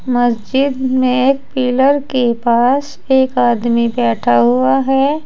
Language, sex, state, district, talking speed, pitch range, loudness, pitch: Hindi, female, Uttar Pradesh, Saharanpur, 125 wpm, 235-270 Hz, -14 LUFS, 255 Hz